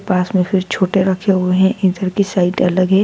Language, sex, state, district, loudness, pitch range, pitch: Hindi, female, Madhya Pradesh, Dhar, -15 LUFS, 185-195 Hz, 185 Hz